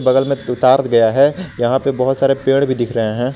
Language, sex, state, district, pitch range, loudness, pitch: Hindi, male, Jharkhand, Garhwa, 125-135 Hz, -15 LUFS, 130 Hz